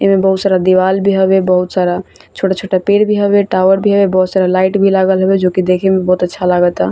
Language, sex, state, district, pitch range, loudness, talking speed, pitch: Bhojpuri, female, Bihar, Saran, 185-195 Hz, -12 LUFS, 245 wpm, 190 Hz